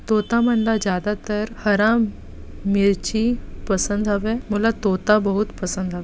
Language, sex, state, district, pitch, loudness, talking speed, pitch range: Chhattisgarhi, female, Chhattisgarh, Bastar, 210 Hz, -21 LUFS, 130 wpm, 200-225 Hz